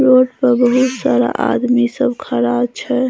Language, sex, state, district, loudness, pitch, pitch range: Maithili, female, Bihar, Saharsa, -15 LUFS, 255 Hz, 240-255 Hz